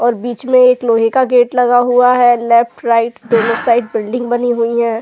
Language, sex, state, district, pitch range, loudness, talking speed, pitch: Hindi, female, Uttar Pradesh, Jyotiba Phule Nagar, 230-245 Hz, -12 LUFS, 215 wpm, 240 Hz